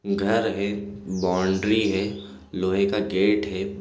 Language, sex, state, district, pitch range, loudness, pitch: Hindi, male, Chhattisgarh, Balrampur, 95-100 Hz, -24 LUFS, 100 Hz